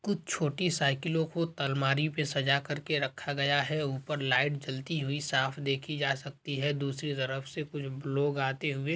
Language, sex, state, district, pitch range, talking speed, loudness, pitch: Hindi, male, Chhattisgarh, Balrampur, 135-150 Hz, 185 wpm, -31 LUFS, 145 Hz